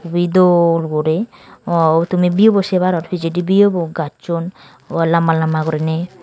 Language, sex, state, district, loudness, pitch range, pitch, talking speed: Chakma, female, Tripura, Dhalai, -16 LUFS, 165-180 Hz, 170 Hz, 155 wpm